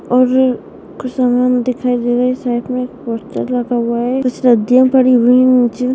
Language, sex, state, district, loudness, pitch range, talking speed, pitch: Hindi, male, Uttarakhand, Tehri Garhwal, -14 LUFS, 245-255 Hz, 190 wpm, 250 Hz